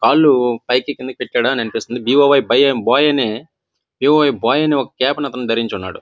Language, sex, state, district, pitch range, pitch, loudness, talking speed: Telugu, male, Andhra Pradesh, Visakhapatnam, 120-145 Hz, 130 Hz, -16 LUFS, 140 wpm